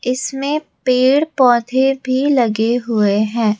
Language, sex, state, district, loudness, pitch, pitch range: Hindi, female, Rajasthan, Jaipur, -16 LUFS, 255 Hz, 230-270 Hz